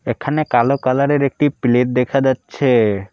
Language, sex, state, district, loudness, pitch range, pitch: Bengali, male, West Bengal, Alipurduar, -16 LUFS, 120-140 Hz, 130 Hz